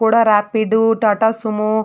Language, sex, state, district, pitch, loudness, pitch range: Kannada, female, Karnataka, Mysore, 220 Hz, -15 LUFS, 215-225 Hz